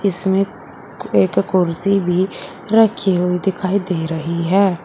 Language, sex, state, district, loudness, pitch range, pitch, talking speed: Hindi, female, Uttar Pradesh, Shamli, -17 LUFS, 180-195 Hz, 190 Hz, 125 wpm